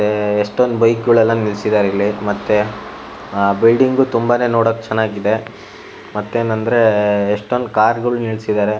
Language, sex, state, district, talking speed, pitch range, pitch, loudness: Kannada, male, Karnataka, Shimoga, 110 wpm, 105-115 Hz, 110 Hz, -16 LUFS